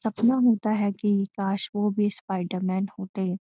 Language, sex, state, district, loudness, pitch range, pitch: Hindi, female, Uttarakhand, Uttarkashi, -26 LUFS, 195-210 Hz, 200 Hz